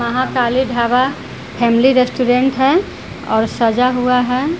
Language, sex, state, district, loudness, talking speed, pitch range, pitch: Hindi, female, Bihar, Vaishali, -15 LUFS, 130 wpm, 240-260 Hz, 250 Hz